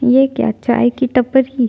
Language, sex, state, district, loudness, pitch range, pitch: Hindi, female, Chhattisgarh, Jashpur, -15 LUFS, 240-265 Hz, 250 Hz